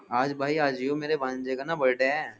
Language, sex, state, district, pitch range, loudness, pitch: Hindi, male, Uttar Pradesh, Jyotiba Phule Nagar, 130-150 Hz, -27 LUFS, 140 Hz